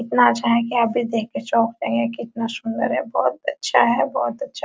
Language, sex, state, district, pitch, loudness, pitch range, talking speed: Hindi, female, Bihar, Araria, 230 Hz, -21 LUFS, 225-240 Hz, 245 wpm